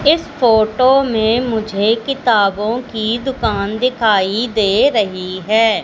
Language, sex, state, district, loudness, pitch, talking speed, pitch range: Hindi, female, Madhya Pradesh, Katni, -15 LUFS, 225 Hz, 115 wpm, 210-250 Hz